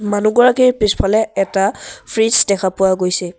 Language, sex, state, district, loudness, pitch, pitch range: Assamese, male, Assam, Sonitpur, -15 LUFS, 205 Hz, 195-220 Hz